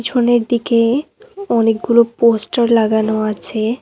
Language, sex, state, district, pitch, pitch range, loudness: Bengali, female, West Bengal, Cooch Behar, 235 Hz, 220-240 Hz, -15 LUFS